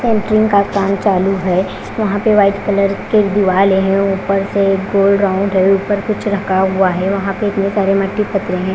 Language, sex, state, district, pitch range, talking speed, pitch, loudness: Hindi, female, Punjab, Fazilka, 195-205 Hz, 200 wpm, 195 Hz, -14 LUFS